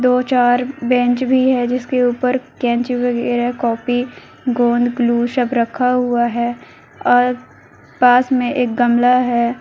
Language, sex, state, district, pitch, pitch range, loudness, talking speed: Hindi, female, Jharkhand, Garhwa, 245 Hz, 240-250 Hz, -16 LUFS, 135 wpm